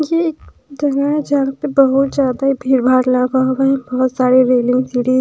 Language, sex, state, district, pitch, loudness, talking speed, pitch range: Hindi, female, Bihar, West Champaran, 265 Hz, -15 LUFS, 195 wpm, 255-280 Hz